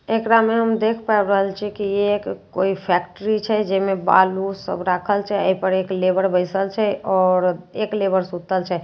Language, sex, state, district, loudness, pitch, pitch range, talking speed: Maithili, female, Bihar, Katihar, -20 LUFS, 195 Hz, 185-210 Hz, 210 wpm